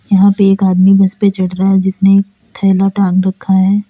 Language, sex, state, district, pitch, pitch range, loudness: Hindi, female, Uttar Pradesh, Lalitpur, 195 Hz, 190-200 Hz, -11 LUFS